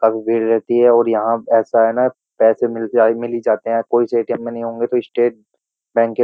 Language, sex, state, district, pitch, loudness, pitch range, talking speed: Hindi, male, Uttar Pradesh, Jyotiba Phule Nagar, 115 Hz, -17 LUFS, 115-120 Hz, 260 wpm